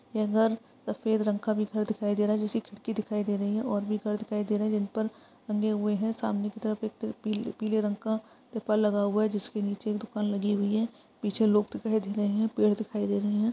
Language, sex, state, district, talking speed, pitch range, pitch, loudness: Hindi, female, Uttar Pradesh, Varanasi, 255 wpm, 210-220 Hz, 215 Hz, -29 LUFS